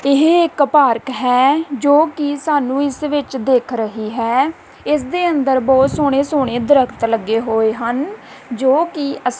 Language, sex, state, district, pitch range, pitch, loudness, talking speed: Punjabi, female, Punjab, Kapurthala, 250-290 Hz, 275 Hz, -16 LUFS, 140 wpm